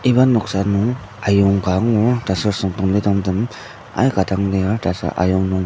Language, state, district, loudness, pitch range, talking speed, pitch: Ao, Nagaland, Dimapur, -18 LUFS, 95-110 Hz, 160 wpm, 100 Hz